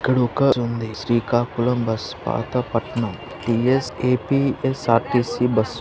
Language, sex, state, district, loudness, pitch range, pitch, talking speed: Telugu, male, Andhra Pradesh, Srikakulam, -21 LUFS, 115-130 Hz, 120 Hz, 50 wpm